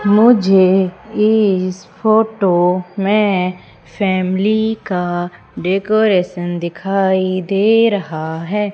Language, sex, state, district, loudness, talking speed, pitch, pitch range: Hindi, female, Madhya Pradesh, Umaria, -15 LUFS, 75 wpm, 190 Hz, 180-210 Hz